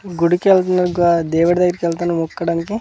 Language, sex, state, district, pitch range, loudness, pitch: Telugu, male, Andhra Pradesh, Manyam, 170-180 Hz, -16 LUFS, 175 Hz